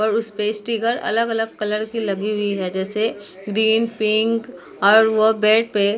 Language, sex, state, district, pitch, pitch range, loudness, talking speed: Hindi, female, Uttar Pradesh, Muzaffarnagar, 215 Hz, 210-225 Hz, -19 LUFS, 190 wpm